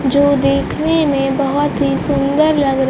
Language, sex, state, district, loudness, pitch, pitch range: Hindi, female, Bihar, Kaimur, -15 LUFS, 280 Hz, 275-290 Hz